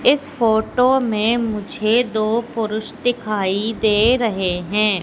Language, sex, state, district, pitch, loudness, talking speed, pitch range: Hindi, female, Madhya Pradesh, Katni, 220 Hz, -19 LUFS, 120 wpm, 215-240 Hz